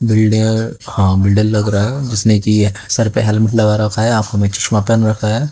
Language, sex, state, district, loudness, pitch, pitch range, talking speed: Hindi, male, Haryana, Jhajjar, -14 LUFS, 110 Hz, 105-110 Hz, 205 wpm